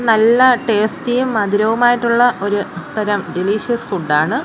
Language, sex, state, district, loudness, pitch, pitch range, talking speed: Malayalam, female, Kerala, Kollam, -15 LUFS, 220 Hz, 205-240 Hz, 110 wpm